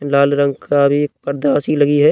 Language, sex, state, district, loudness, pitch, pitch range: Hindi, male, Uttar Pradesh, Jyotiba Phule Nagar, -15 LUFS, 145 Hz, 140-145 Hz